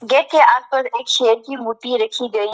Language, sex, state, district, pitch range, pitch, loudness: Hindi, female, Arunachal Pradesh, Lower Dibang Valley, 230-265 Hz, 245 Hz, -17 LUFS